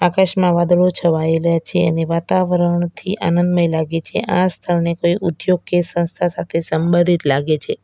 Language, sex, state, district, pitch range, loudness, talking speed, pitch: Gujarati, female, Gujarat, Valsad, 165-180 Hz, -17 LUFS, 155 wpm, 175 Hz